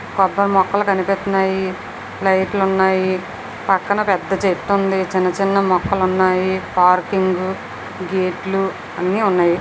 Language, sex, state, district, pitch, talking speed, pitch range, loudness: Telugu, female, Andhra Pradesh, Visakhapatnam, 190 Hz, 100 wpm, 185-195 Hz, -18 LUFS